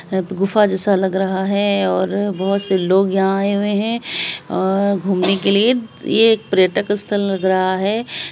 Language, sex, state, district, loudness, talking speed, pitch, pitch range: Hindi, female, Bihar, Araria, -17 LUFS, 190 wpm, 195 Hz, 190-205 Hz